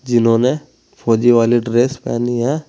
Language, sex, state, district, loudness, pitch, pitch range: Hindi, male, Uttar Pradesh, Saharanpur, -15 LUFS, 120 Hz, 115-130 Hz